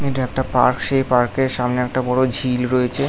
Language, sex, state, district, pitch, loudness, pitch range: Bengali, male, West Bengal, North 24 Parganas, 130 Hz, -19 LUFS, 125-130 Hz